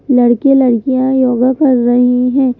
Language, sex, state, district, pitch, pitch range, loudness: Hindi, female, Madhya Pradesh, Bhopal, 255 Hz, 245-265 Hz, -11 LUFS